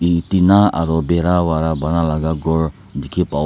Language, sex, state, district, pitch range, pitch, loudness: Nagamese, male, Nagaland, Dimapur, 80-85 Hz, 80 Hz, -17 LUFS